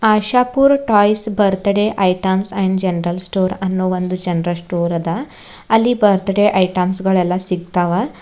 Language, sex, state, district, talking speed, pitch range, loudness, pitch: Kannada, female, Karnataka, Bidar, 125 wpm, 180-210 Hz, -16 LUFS, 190 Hz